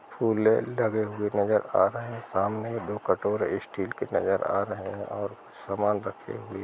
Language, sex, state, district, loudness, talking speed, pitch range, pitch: Hindi, male, Bihar, East Champaran, -28 LUFS, 190 wpm, 105-115 Hz, 105 Hz